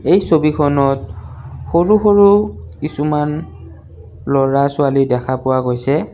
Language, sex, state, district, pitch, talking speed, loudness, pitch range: Assamese, male, Assam, Kamrup Metropolitan, 140 Hz, 90 wpm, -15 LUFS, 125-155 Hz